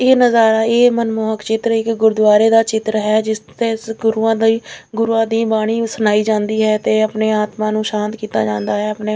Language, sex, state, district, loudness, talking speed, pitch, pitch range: Punjabi, female, Chandigarh, Chandigarh, -16 LUFS, 195 wpm, 220 Hz, 215-225 Hz